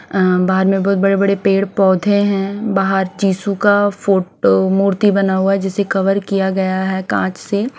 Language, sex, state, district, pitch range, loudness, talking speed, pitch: Hindi, female, Odisha, Nuapada, 190-200 Hz, -15 LUFS, 185 wpm, 195 Hz